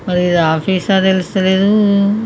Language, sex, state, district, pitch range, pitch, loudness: Telugu, female, Telangana, Karimnagar, 180-200 Hz, 190 Hz, -13 LUFS